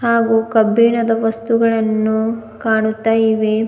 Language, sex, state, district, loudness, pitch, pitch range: Kannada, female, Karnataka, Bidar, -16 LUFS, 225 Hz, 220-230 Hz